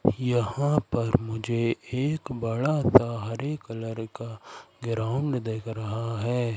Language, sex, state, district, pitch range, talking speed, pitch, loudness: Hindi, male, Madhya Pradesh, Katni, 115-130 Hz, 120 wpm, 115 Hz, -27 LUFS